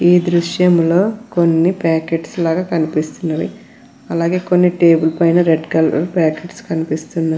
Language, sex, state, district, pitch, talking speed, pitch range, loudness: Telugu, female, Andhra Pradesh, Krishna, 170 Hz, 115 wpm, 160-180 Hz, -15 LUFS